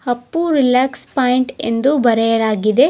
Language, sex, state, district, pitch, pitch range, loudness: Kannada, female, Karnataka, Chamarajanagar, 250 Hz, 230-270 Hz, -15 LUFS